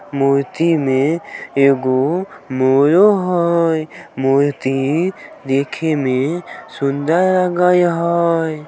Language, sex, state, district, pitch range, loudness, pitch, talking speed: Maithili, male, Bihar, Samastipur, 135-170 Hz, -16 LUFS, 155 Hz, 75 wpm